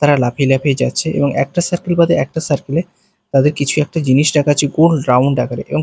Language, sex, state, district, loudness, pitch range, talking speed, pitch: Bengali, male, Bihar, Katihar, -15 LUFS, 140-165 Hz, 215 wpm, 145 Hz